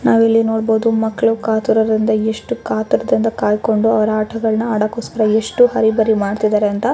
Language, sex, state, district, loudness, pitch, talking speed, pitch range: Kannada, female, Karnataka, Shimoga, -16 LUFS, 220 Hz, 140 wpm, 215-225 Hz